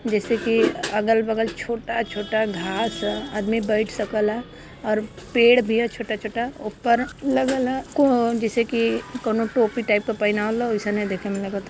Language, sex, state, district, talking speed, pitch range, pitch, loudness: Hindi, female, Uttar Pradesh, Varanasi, 165 wpm, 210-235 Hz, 225 Hz, -22 LUFS